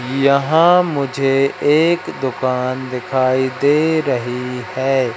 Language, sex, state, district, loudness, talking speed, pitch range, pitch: Hindi, male, Madhya Pradesh, Katni, -16 LUFS, 95 wpm, 130-145 Hz, 135 Hz